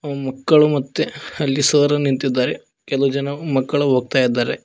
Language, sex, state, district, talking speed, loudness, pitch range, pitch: Kannada, male, Karnataka, Koppal, 130 wpm, -18 LUFS, 130-145 Hz, 140 Hz